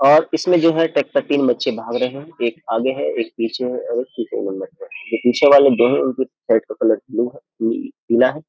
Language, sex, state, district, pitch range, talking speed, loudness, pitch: Hindi, male, Uttar Pradesh, Jyotiba Phule Nagar, 120-165 Hz, 260 wpm, -18 LUFS, 140 Hz